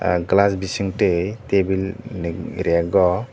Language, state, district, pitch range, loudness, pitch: Kokborok, Tripura, Dhalai, 90-100 Hz, -20 LUFS, 95 Hz